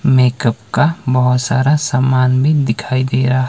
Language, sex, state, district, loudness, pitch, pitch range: Hindi, male, Himachal Pradesh, Shimla, -14 LUFS, 130 Hz, 125-135 Hz